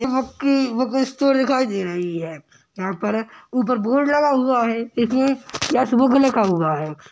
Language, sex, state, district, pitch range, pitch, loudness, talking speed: Hindi, male, Uttarakhand, Tehri Garhwal, 195-265 Hz, 250 Hz, -20 LUFS, 175 wpm